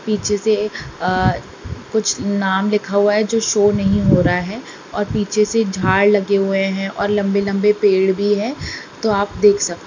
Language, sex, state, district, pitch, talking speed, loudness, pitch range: Hindi, female, Bihar, Sitamarhi, 205 Hz, 190 wpm, -17 LUFS, 195-210 Hz